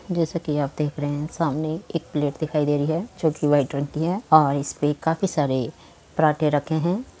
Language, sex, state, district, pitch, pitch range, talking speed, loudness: Hindi, female, Uttar Pradesh, Muzaffarnagar, 155 Hz, 145-165 Hz, 225 wpm, -23 LUFS